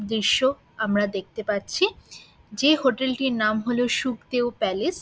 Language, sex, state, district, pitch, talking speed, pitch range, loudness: Bengali, female, West Bengal, Dakshin Dinajpur, 245 Hz, 145 wpm, 215-265 Hz, -24 LUFS